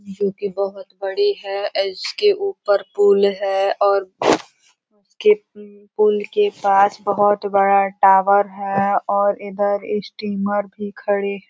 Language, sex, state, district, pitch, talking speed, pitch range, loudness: Hindi, female, Uttar Pradesh, Ghazipur, 200 Hz, 125 wpm, 200-205 Hz, -19 LUFS